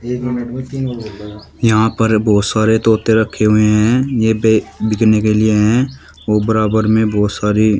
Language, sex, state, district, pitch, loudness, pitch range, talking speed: Hindi, male, Uttar Pradesh, Shamli, 110 Hz, -14 LUFS, 105-115 Hz, 145 wpm